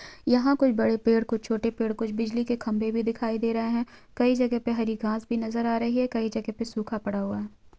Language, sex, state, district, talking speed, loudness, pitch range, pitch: Hindi, female, Jharkhand, Sahebganj, 245 wpm, -27 LUFS, 225-235 Hz, 230 Hz